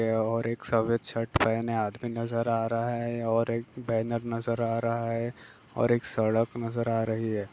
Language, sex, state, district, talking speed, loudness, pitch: Hindi, male, Bihar, Jahanabad, 200 wpm, -29 LUFS, 115 Hz